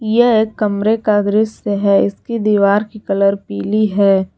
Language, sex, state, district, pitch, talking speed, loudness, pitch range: Hindi, female, Jharkhand, Garhwa, 210 Hz, 165 wpm, -15 LUFS, 200-215 Hz